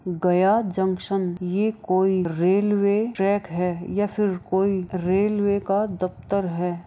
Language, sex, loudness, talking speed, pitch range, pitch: Maithili, female, -23 LUFS, 120 wpm, 180-205 Hz, 190 Hz